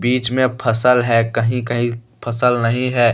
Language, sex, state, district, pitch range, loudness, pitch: Hindi, male, Jharkhand, Deoghar, 115-125 Hz, -17 LUFS, 120 Hz